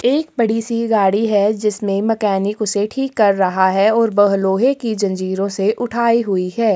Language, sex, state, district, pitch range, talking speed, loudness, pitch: Hindi, female, Chhattisgarh, Kabirdham, 195-230 Hz, 185 wpm, -16 LUFS, 210 Hz